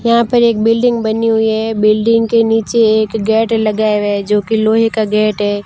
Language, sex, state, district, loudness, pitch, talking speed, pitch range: Hindi, female, Rajasthan, Barmer, -13 LUFS, 220 Hz, 225 wpm, 215-230 Hz